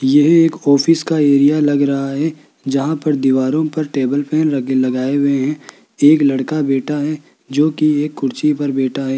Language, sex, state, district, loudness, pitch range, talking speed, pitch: Hindi, male, Rajasthan, Jaipur, -15 LUFS, 135-155 Hz, 195 wpm, 145 Hz